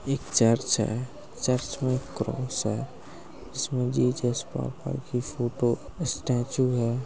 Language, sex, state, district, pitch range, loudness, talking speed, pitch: Hindi, male, Maharashtra, Aurangabad, 120-130 Hz, -28 LUFS, 110 wpm, 125 Hz